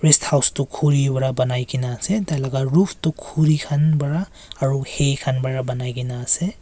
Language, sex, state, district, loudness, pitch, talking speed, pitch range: Nagamese, male, Nagaland, Kohima, -20 LUFS, 140 Hz, 220 wpm, 130-155 Hz